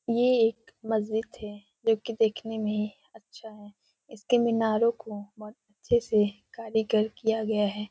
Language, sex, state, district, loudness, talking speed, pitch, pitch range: Hindi, female, Uttar Pradesh, Varanasi, -27 LUFS, 145 wpm, 220 Hz, 210-230 Hz